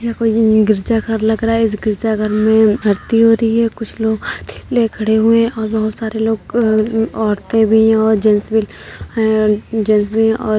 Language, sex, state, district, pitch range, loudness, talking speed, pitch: Hindi, male, Uttar Pradesh, Muzaffarnagar, 215-225 Hz, -15 LUFS, 155 wpm, 220 Hz